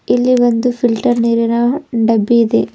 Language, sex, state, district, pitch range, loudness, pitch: Kannada, female, Karnataka, Bidar, 230-245 Hz, -13 LUFS, 235 Hz